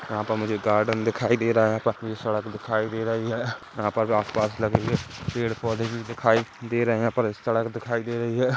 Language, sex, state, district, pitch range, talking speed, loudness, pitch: Hindi, male, Chhattisgarh, Kabirdham, 110-115 Hz, 245 wpm, -25 LUFS, 115 Hz